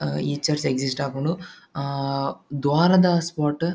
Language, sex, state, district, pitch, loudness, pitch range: Tulu, male, Karnataka, Dakshina Kannada, 145 Hz, -23 LUFS, 140-170 Hz